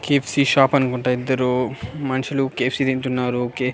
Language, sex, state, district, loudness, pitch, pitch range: Telugu, male, Andhra Pradesh, Annamaya, -20 LUFS, 130 Hz, 125-135 Hz